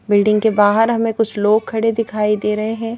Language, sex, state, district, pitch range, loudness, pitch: Hindi, female, Madhya Pradesh, Bhopal, 210-225 Hz, -16 LUFS, 220 Hz